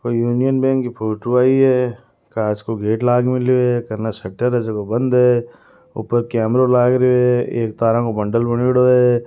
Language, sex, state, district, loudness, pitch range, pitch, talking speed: Marwari, male, Rajasthan, Nagaur, -17 LUFS, 115-125 Hz, 120 Hz, 170 wpm